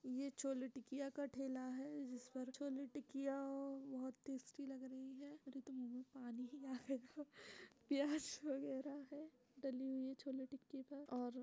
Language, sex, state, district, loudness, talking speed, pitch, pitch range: Hindi, female, Uttar Pradesh, Etah, -49 LUFS, 185 wpm, 270 Hz, 260-280 Hz